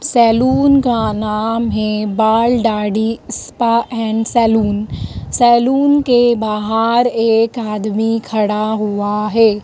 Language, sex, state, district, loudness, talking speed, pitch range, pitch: Hindi, female, Madhya Pradesh, Dhar, -15 LUFS, 105 wpm, 215-235 Hz, 225 Hz